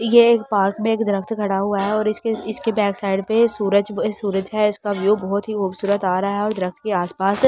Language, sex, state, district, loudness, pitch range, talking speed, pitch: Hindi, female, Delhi, New Delhi, -20 LUFS, 195-215 Hz, 250 wpm, 205 Hz